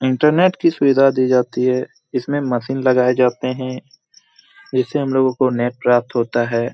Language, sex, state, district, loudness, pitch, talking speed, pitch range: Hindi, male, Bihar, Jamui, -17 LUFS, 130 Hz, 170 wpm, 125-140 Hz